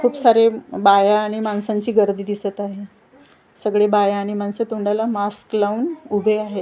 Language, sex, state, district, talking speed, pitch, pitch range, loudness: Marathi, female, Maharashtra, Gondia, 155 wpm, 210 Hz, 205-220 Hz, -19 LUFS